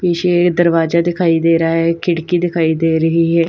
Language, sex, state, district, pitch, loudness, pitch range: Hindi, female, Bihar, Patna, 170 Hz, -14 LUFS, 165-175 Hz